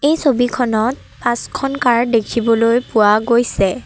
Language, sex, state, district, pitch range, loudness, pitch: Assamese, female, Assam, Sonitpur, 225-250 Hz, -16 LUFS, 235 Hz